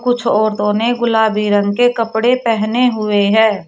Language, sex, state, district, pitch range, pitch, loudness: Hindi, female, Uttar Pradesh, Shamli, 210-240 Hz, 220 Hz, -14 LUFS